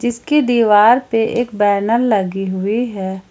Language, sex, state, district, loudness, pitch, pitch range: Hindi, female, Jharkhand, Ranchi, -15 LUFS, 225 Hz, 200-240 Hz